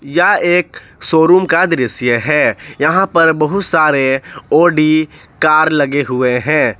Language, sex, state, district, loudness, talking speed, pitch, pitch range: Hindi, male, Jharkhand, Ranchi, -12 LUFS, 130 wpm, 155 Hz, 145-165 Hz